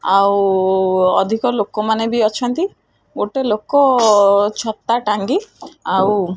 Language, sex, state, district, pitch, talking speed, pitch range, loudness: Odia, female, Odisha, Khordha, 215 Hz, 105 wpm, 200-240 Hz, -16 LUFS